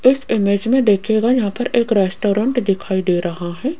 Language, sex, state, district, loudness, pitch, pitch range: Hindi, female, Rajasthan, Jaipur, -17 LUFS, 215 Hz, 195-245 Hz